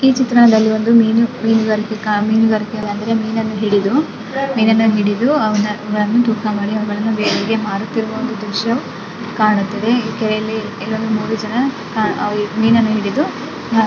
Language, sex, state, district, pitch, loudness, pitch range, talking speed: Kannada, female, Karnataka, Dakshina Kannada, 220 Hz, -16 LUFS, 210-230 Hz, 95 wpm